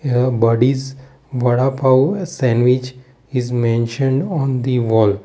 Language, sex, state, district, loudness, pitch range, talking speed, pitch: English, male, Gujarat, Valsad, -17 LUFS, 120-135 Hz, 105 wpm, 130 Hz